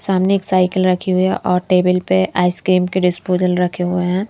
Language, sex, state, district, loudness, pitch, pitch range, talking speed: Hindi, female, Madhya Pradesh, Bhopal, -16 LUFS, 180 Hz, 180-185 Hz, 210 wpm